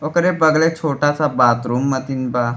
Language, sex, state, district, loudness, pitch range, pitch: Bhojpuri, male, Uttar Pradesh, Deoria, -17 LUFS, 125-155 Hz, 140 Hz